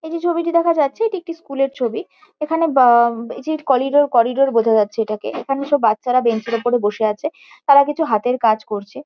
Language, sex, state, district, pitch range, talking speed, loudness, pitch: Bengali, female, West Bengal, Kolkata, 230-305 Hz, 220 wpm, -17 LUFS, 270 Hz